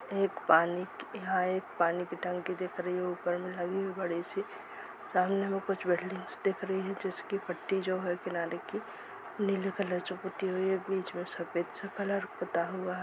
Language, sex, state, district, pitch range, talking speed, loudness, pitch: Hindi, male, Jharkhand, Sahebganj, 180-195 Hz, 195 wpm, -33 LUFS, 185 Hz